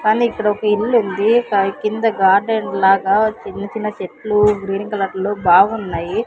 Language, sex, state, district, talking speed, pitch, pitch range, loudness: Telugu, female, Andhra Pradesh, Sri Satya Sai, 155 wpm, 210 Hz, 195-220 Hz, -16 LUFS